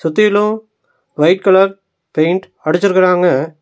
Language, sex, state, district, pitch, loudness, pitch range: Tamil, male, Tamil Nadu, Nilgiris, 185 Hz, -13 LUFS, 160-195 Hz